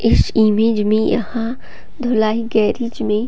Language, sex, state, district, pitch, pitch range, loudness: Hindi, female, Bihar, Gopalganj, 225 Hz, 215-235 Hz, -17 LUFS